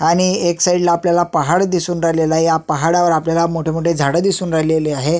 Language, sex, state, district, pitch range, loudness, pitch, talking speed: Marathi, male, Maharashtra, Sindhudurg, 160-175 Hz, -16 LUFS, 170 Hz, 195 wpm